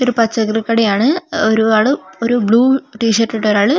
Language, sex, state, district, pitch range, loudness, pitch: Malayalam, female, Kerala, Wayanad, 220-250 Hz, -14 LUFS, 230 Hz